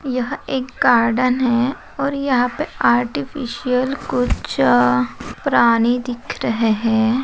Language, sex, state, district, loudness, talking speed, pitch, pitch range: Hindi, female, Maharashtra, Pune, -18 LUFS, 115 wpm, 245 Hz, 225-260 Hz